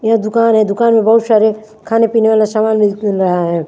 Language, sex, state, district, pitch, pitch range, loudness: Hindi, female, Himachal Pradesh, Shimla, 220 Hz, 210-225 Hz, -12 LUFS